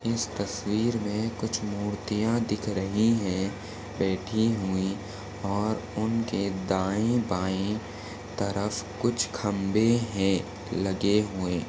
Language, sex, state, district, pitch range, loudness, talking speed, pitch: Hindi, male, Maharashtra, Nagpur, 95-110 Hz, -28 LUFS, 100 wpm, 105 Hz